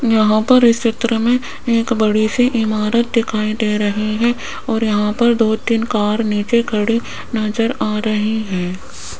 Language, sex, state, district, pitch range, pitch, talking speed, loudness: Hindi, female, Rajasthan, Jaipur, 215-235 Hz, 220 Hz, 165 wpm, -16 LUFS